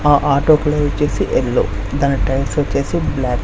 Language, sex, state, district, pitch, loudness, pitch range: Telugu, male, Andhra Pradesh, Sri Satya Sai, 140 Hz, -17 LUFS, 135-150 Hz